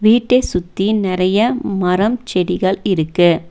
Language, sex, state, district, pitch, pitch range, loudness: Tamil, female, Tamil Nadu, Nilgiris, 190 Hz, 180-220 Hz, -16 LUFS